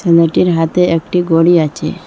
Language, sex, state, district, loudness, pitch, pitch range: Bengali, female, Assam, Hailakandi, -12 LUFS, 170 Hz, 165-175 Hz